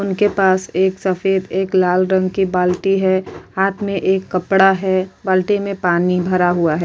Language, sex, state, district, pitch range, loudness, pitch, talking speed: Hindi, female, Maharashtra, Chandrapur, 185-195 Hz, -17 LUFS, 190 Hz, 185 wpm